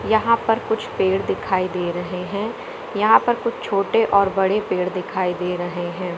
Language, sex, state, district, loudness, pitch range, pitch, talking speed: Hindi, female, Madhya Pradesh, Katni, -21 LUFS, 180-220 Hz, 195 Hz, 185 wpm